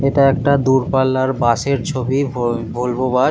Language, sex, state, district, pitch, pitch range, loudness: Bengali, male, West Bengal, Kolkata, 130 Hz, 125-135 Hz, -17 LUFS